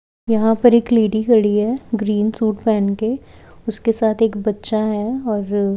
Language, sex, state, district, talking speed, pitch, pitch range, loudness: Hindi, female, Haryana, Charkhi Dadri, 165 wpm, 220 Hz, 210-230 Hz, -18 LUFS